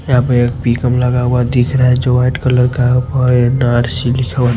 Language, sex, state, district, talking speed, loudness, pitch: Hindi, male, Punjab, Kapurthala, 195 wpm, -13 LUFS, 125 Hz